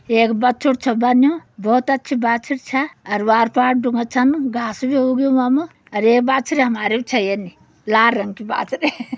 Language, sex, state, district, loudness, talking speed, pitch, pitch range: Garhwali, female, Uttarakhand, Uttarkashi, -18 LUFS, 195 wpm, 250 Hz, 230-265 Hz